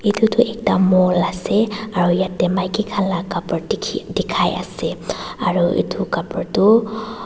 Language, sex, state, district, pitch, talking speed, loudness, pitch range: Nagamese, female, Nagaland, Dimapur, 200 Hz, 130 wpm, -19 LUFS, 185-220 Hz